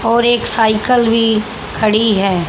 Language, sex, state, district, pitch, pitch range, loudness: Hindi, female, Haryana, Jhajjar, 225 Hz, 215-235 Hz, -13 LUFS